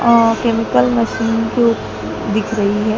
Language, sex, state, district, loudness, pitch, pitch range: Hindi, female, Madhya Pradesh, Dhar, -16 LUFS, 225 Hz, 210-230 Hz